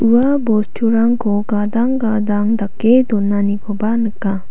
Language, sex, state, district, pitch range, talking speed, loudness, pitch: Garo, female, Meghalaya, South Garo Hills, 205-230 Hz, 95 wpm, -16 LUFS, 220 Hz